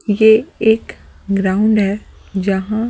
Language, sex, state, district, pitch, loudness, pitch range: Hindi, male, Delhi, New Delhi, 210 Hz, -15 LUFS, 195-220 Hz